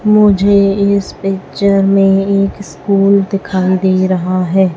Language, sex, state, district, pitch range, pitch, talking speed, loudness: Hindi, female, Chhattisgarh, Raipur, 185-200 Hz, 195 Hz, 125 wpm, -12 LUFS